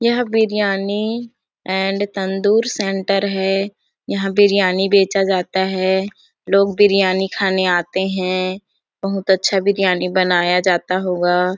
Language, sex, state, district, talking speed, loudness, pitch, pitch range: Hindi, female, Chhattisgarh, Sarguja, 115 wpm, -17 LUFS, 195 Hz, 185-200 Hz